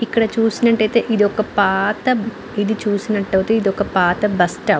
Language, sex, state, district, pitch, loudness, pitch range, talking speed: Telugu, female, Andhra Pradesh, Anantapur, 210 Hz, -17 LUFS, 200-225 Hz, 175 wpm